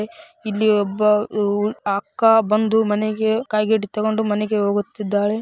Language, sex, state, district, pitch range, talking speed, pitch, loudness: Kannada, female, Karnataka, Raichur, 205-220 Hz, 120 wpm, 215 Hz, -19 LUFS